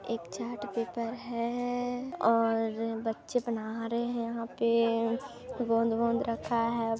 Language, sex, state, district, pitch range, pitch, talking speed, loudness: Hindi, female, Chhattisgarh, Kabirdham, 230-235 Hz, 230 Hz, 120 wpm, -31 LUFS